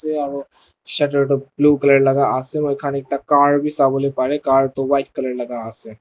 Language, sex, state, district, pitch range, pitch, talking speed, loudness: Nagamese, male, Nagaland, Dimapur, 135-145 Hz, 140 Hz, 210 wpm, -17 LUFS